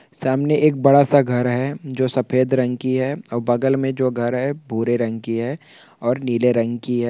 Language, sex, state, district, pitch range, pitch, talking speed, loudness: Hindi, male, Andhra Pradesh, Krishna, 120-135 Hz, 130 Hz, 230 wpm, -19 LUFS